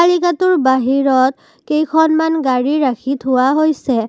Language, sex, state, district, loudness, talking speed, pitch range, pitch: Assamese, female, Assam, Kamrup Metropolitan, -15 LUFS, 105 wpm, 260-320 Hz, 275 Hz